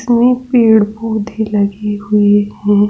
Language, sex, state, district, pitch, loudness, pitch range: Hindi, female, Rajasthan, Jaipur, 210 Hz, -13 LUFS, 205-225 Hz